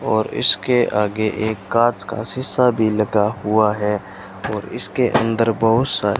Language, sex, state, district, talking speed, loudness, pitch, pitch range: Hindi, male, Rajasthan, Bikaner, 165 wpm, -18 LUFS, 110 Hz, 105-115 Hz